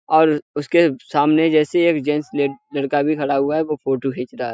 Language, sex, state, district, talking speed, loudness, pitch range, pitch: Hindi, male, Uttar Pradesh, Budaun, 210 wpm, -19 LUFS, 140-155 Hz, 145 Hz